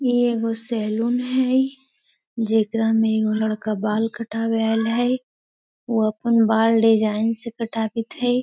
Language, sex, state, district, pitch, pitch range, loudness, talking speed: Magahi, female, Bihar, Gaya, 225 Hz, 220-240 Hz, -21 LUFS, 130 wpm